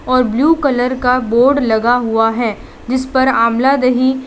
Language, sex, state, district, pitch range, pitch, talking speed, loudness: Hindi, female, Gujarat, Valsad, 235-260 Hz, 255 Hz, 180 wpm, -14 LUFS